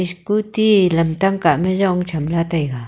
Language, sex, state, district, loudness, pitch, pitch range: Wancho, female, Arunachal Pradesh, Longding, -17 LUFS, 180 Hz, 165-195 Hz